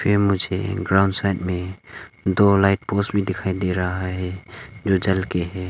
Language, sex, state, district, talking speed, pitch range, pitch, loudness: Hindi, male, Arunachal Pradesh, Longding, 170 wpm, 90-100 Hz, 95 Hz, -21 LUFS